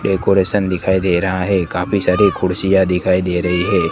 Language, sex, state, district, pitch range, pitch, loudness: Hindi, male, Gujarat, Gandhinagar, 90-95 Hz, 95 Hz, -16 LUFS